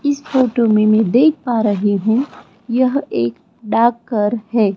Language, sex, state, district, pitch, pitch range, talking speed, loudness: Hindi, female, Chhattisgarh, Raipur, 230 Hz, 210-255 Hz, 165 wpm, -16 LUFS